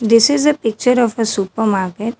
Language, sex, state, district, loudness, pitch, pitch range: English, female, Telangana, Hyderabad, -15 LUFS, 225 Hz, 215-245 Hz